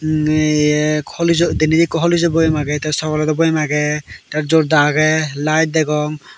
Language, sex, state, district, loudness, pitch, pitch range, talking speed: Chakma, male, Tripura, Dhalai, -16 LUFS, 155 Hz, 150-160 Hz, 150 wpm